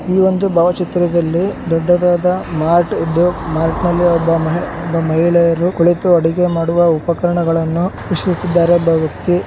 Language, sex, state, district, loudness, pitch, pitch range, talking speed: Kannada, male, Karnataka, Shimoga, -14 LUFS, 170 Hz, 165-175 Hz, 115 wpm